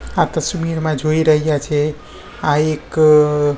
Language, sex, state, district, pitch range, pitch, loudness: Gujarati, male, Gujarat, Gandhinagar, 150-155 Hz, 155 Hz, -16 LUFS